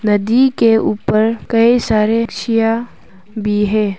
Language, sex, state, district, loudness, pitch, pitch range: Hindi, female, Arunachal Pradesh, Papum Pare, -14 LUFS, 225 Hz, 210-230 Hz